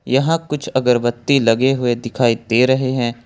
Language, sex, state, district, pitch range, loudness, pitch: Hindi, male, Jharkhand, Ranchi, 120-135 Hz, -17 LUFS, 125 Hz